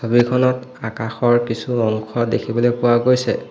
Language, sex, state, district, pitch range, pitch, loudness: Assamese, male, Assam, Hailakandi, 115-125 Hz, 120 Hz, -18 LUFS